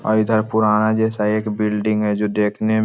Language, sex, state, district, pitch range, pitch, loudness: Hindi, male, Jharkhand, Sahebganj, 105-110 Hz, 110 Hz, -18 LUFS